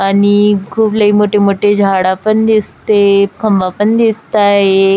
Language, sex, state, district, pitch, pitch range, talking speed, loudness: Marathi, female, Maharashtra, Chandrapur, 205 Hz, 200-215 Hz, 110 wpm, -11 LUFS